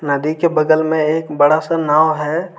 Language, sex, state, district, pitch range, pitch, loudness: Hindi, male, Jharkhand, Deoghar, 150-160 Hz, 155 Hz, -15 LUFS